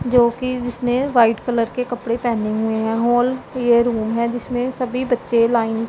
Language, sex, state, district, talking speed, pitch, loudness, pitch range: Hindi, female, Punjab, Pathankot, 195 wpm, 240 Hz, -19 LUFS, 230-250 Hz